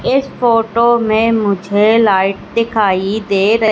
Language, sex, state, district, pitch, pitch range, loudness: Hindi, female, Madhya Pradesh, Katni, 220 Hz, 200-230 Hz, -13 LUFS